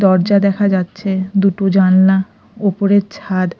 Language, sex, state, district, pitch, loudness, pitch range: Bengali, female, Odisha, Khordha, 195 Hz, -14 LUFS, 190-200 Hz